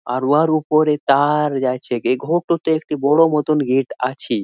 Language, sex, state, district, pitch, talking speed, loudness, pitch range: Bengali, male, West Bengal, Malda, 150 Hz, 175 wpm, -17 LUFS, 130-155 Hz